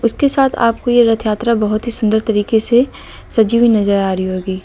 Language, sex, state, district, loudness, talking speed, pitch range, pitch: Hindi, female, Uttar Pradesh, Lucknow, -14 LUFS, 220 wpm, 210-235 Hz, 225 Hz